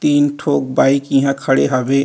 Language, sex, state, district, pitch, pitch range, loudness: Chhattisgarhi, male, Chhattisgarh, Rajnandgaon, 140 Hz, 135-145 Hz, -15 LUFS